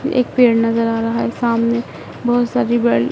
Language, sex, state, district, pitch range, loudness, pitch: Hindi, female, Madhya Pradesh, Dhar, 230-245 Hz, -17 LUFS, 235 Hz